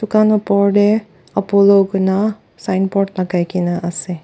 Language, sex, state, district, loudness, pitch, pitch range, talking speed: Nagamese, female, Nagaland, Dimapur, -16 LUFS, 195 Hz, 180-205 Hz, 125 wpm